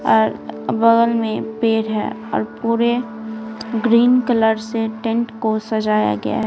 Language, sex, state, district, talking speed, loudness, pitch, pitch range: Hindi, female, Bihar, Patna, 140 wpm, -18 LUFS, 225 Hz, 215-230 Hz